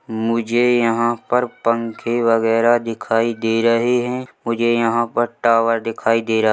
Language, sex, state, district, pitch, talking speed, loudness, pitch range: Hindi, male, Chhattisgarh, Bilaspur, 115 Hz, 145 wpm, -18 LUFS, 115-120 Hz